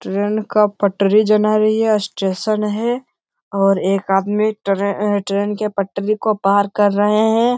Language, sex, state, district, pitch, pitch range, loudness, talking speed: Hindi, male, Bihar, Lakhisarai, 205 Hz, 200-215 Hz, -17 LUFS, 160 wpm